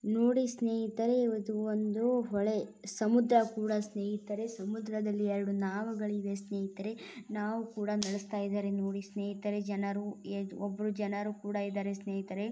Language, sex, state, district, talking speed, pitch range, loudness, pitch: Kannada, female, Karnataka, Bijapur, 120 wpm, 200-220 Hz, -34 LUFS, 210 Hz